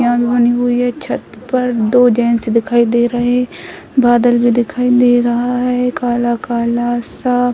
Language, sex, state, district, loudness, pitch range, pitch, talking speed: Hindi, female, Bihar, Sitamarhi, -14 LUFS, 240-245 Hz, 240 Hz, 150 wpm